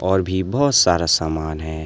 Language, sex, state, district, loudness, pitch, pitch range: Hindi, male, Chhattisgarh, Raipur, -18 LUFS, 85 Hz, 80-95 Hz